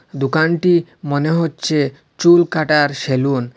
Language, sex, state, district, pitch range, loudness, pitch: Bengali, male, Assam, Hailakandi, 140-165 Hz, -16 LUFS, 155 Hz